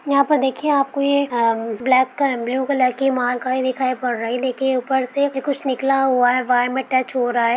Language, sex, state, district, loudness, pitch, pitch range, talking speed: Hindi, female, Jharkhand, Sahebganj, -19 LUFS, 260 Hz, 250-275 Hz, 215 wpm